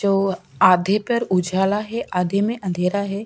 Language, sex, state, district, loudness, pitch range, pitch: Hindi, female, Chhattisgarh, Sukma, -20 LUFS, 180-205 Hz, 195 Hz